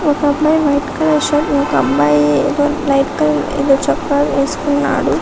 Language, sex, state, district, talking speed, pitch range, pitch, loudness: Telugu, female, Telangana, Karimnagar, 115 wpm, 275-295 Hz, 285 Hz, -14 LUFS